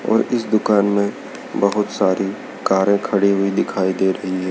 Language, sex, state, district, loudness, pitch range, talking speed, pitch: Hindi, male, Madhya Pradesh, Dhar, -19 LUFS, 95-100 Hz, 175 wpm, 100 Hz